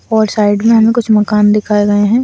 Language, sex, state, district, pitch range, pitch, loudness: Hindi, female, Chhattisgarh, Kabirdham, 210-225 Hz, 215 Hz, -11 LUFS